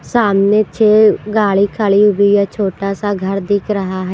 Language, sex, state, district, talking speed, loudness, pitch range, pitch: Hindi, female, Punjab, Pathankot, 175 wpm, -13 LUFS, 195-210 Hz, 205 Hz